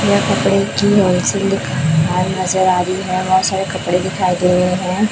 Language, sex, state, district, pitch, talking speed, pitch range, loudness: Hindi, female, Chhattisgarh, Raipur, 185 Hz, 200 wpm, 180-195 Hz, -15 LUFS